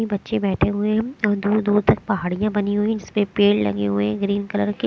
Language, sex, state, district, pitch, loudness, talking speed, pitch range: Hindi, female, Maharashtra, Mumbai Suburban, 205 Hz, -21 LUFS, 245 wpm, 200-210 Hz